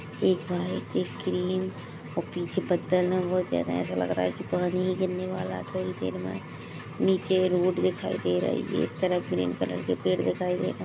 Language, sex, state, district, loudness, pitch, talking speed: Hindi, female, Chhattisgarh, Rajnandgaon, -28 LUFS, 175 Hz, 220 wpm